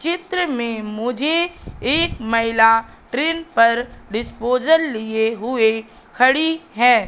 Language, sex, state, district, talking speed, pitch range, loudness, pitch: Hindi, female, Madhya Pradesh, Katni, 100 wpm, 225-320 Hz, -19 LUFS, 240 Hz